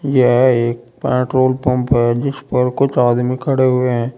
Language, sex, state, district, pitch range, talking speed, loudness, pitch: Hindi, male, Uttar Pradesh, Saharanpur, 120-130 Hz, 170 wpm, -15 LUFS, 125 Hz